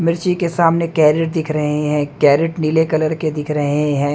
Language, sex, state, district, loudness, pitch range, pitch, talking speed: Hindi, male, Haryana, Rohtak, -16 LUFS, 150-165 Hz, 155 Hz, 200 wpm